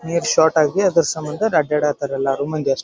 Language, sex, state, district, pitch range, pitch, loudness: Kannada, male, Karnataka, Dharwad, 145-170 Hz, 155 Hz, -18 LUFS